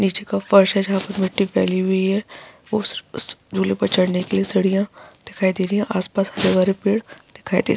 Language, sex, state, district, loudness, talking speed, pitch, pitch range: Hindi, female, Bihar, Araria, -20 LUFS, 215 wpm, 195 Hz, 185-200 Hz